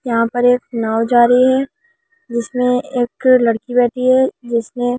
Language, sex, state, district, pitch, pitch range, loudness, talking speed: Hindi, female, Delhi, New Delhi, 245 Hz, 240-260 Hz, -15 LUFS, 155 wpm